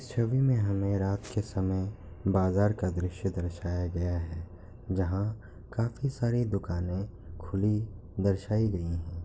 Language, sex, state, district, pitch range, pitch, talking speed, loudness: Hindi, male, Bihar, Kishanganj, 90-105 Hz, 95 Hz, 135 wpm, -31 LUFS